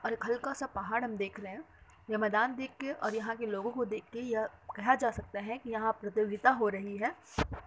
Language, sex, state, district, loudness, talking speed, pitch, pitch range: Hindi, female, Uttar Pradesh, Deoria, -34 LUFS, 250 wpm, 225 Hz, 215-245 Hz